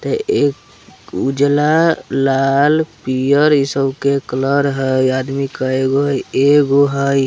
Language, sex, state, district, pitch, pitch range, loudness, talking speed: Bajjika, male, Bihar, Vaishali, 140 Hz, 135-145 Hz, -15 LUFS, 130 wpm